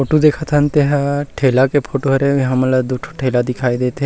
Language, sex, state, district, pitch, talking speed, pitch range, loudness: Chhattisgarhi, male, Chhattisgarh, Rajnandgaon, 135 Hz, 250 wpm, 130-145 Hz, -16 LUFS